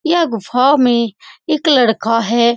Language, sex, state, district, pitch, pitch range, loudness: Hindi, female, Uttar Pradesh, Muzaffarnagar, 240 Hz, 230-300 Hz, -14 LUFS